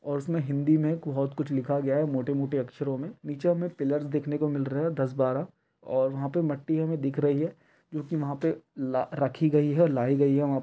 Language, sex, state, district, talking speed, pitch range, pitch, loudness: Hindi, male, Chhattisgarh, Rajnandgaon, 250 wpm, 140-155 Hz, 145 Hz, -28 LUFS